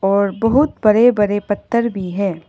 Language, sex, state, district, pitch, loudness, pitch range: Hindi, female, Arunachal Pradesh, Lower Dibang Valley, 205 Hz, -16 LUFS, 195-230 Hz